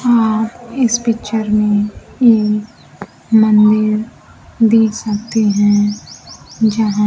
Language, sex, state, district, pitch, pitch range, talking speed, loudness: Hindi, female, Bihar, Kaimur, 220 Hz, 210-225 Hz, 85 wpm, -14 LUFS